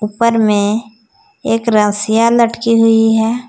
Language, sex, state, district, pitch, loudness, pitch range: Hindi, female, Jharkhand, Palamu, 225 Hz, -13 LUFS, 215-230 Hz